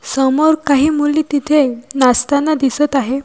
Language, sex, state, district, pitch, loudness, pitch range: Marathi, female, Maharashtra, Washim, 285 Hz, -14 LUFS, 270-300 Hz